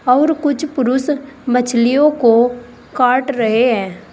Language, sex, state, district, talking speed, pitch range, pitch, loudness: Hindi, female, Uttar Pradesh, Saharanpur, 115 wpm, 240-280 Hz, 250 Hz, -15 LUFS